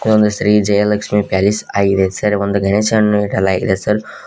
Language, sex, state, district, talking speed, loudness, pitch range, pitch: Kannada, male, Karnataka, Koppal, 110 wpm, -15 LUFS, 100-105 Hz, 105 Hz